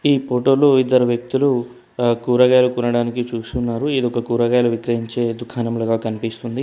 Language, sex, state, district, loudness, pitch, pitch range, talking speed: Telugu, male, Telangana, Hyderabad, -18 LUFS, 120 Hz, 120-125 Hz, 135 wpm